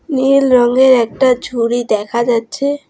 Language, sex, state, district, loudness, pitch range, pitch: Bengali, female, West Bengal, Alipurduar, -13 LUFS, 235-265 Hz, 250 Hz